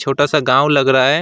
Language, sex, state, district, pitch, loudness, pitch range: Hindi, male, West Bengal, Alipurduar, 140 Hz, -13 LUFS, 135-145 Hz